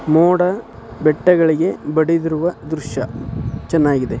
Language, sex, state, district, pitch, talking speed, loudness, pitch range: Kannada, male, Karnataka, Dharwad, 160 Hz, 70 wpm, -17 LUFS, 145-170 Hz